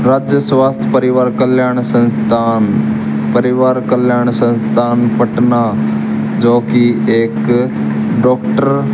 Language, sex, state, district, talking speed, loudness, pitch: Hindi, male, Haryana, Charkhi Dadri, 95 wpm, -12 LUFS, 120 Hz